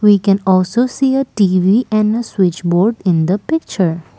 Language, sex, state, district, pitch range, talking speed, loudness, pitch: English, female, Assam, Kamrup Metropolitan, 180-220 Hz, 185 wpm, -15 LUFS, 195 Hz